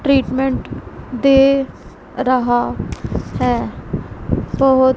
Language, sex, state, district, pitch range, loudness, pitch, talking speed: Hindi, female, Punjab, Pathankot, 255-270 Hz, -17 LUFS, 265 Hz, 60 wpm